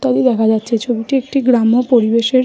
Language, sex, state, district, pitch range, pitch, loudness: Bengali, female, West Bengal, Malda, 230-255 Hz, 245 Hz, -14 LUFS